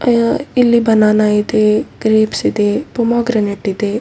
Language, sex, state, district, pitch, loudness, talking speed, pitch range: Kannada, female, Karnataka, Dakshina Kannada, 215 Hz, -14 LUFS, 120 wpm, 210-235 Hz